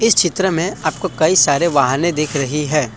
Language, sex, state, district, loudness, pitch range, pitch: Hindi, male, Assam, Kamrup Metropolitan, -16 LUFS, 145-180 Hz, 160 Hz